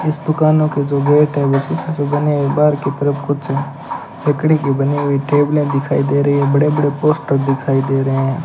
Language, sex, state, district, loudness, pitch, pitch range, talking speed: Hindi, male, Rajasthan, Bikaner, -16 LUFS, 145 Hz, 140-150 Hz, 215 wpm